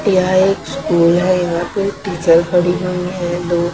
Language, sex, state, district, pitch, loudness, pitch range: Hindi, female, Maharashtra, Mumbai Suburban, 180 Hz, -15 LUFS, 175-185 Hz